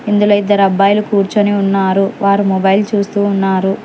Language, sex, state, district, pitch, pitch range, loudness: Telugu, male, Telangana, Hyderabad, 200 Hz, 195-205 Hz, -13 LUFS